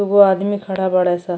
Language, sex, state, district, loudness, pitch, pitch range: Bhojpuri, female, Uttar Pradesh, Ghazipur, -16 LUFS, 190 Hz, 185-200 Hz